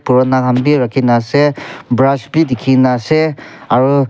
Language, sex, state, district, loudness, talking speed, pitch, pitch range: Nagamese, male, Nagaland, Kohima, -13 LUFS, 145 wpm, 130 Hz, 125-145 Hz